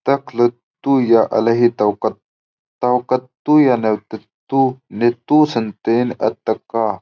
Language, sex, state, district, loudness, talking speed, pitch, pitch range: Marwari, male, Rajasthan, Churu, -17 LUFS, 70 wpm, 120 Hz, 115-130 Hz